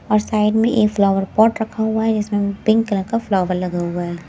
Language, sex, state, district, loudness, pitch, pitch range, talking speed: Hindi, female, Himachal Pradesh, Shimla, -18 LUFS, 210 Hz, 195-220 Hz, 235 wpm